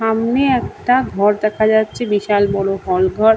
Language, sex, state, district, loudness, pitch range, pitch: Bengali, male, West Bengal, Kolkata, -16 LUFS, 200-225 Hz, 215 Hz